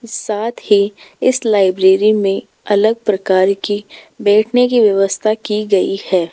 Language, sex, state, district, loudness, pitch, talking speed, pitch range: Hindi, female, Rajasthan, Jaipur, -15 LUFS, 205 Hz, 135 wpm, 195-215 Hz